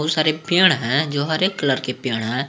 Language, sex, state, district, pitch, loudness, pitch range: Hindi, male, Jharkhand, Garhwa, 145 Hz, -19 LUFS, 130-155 Hz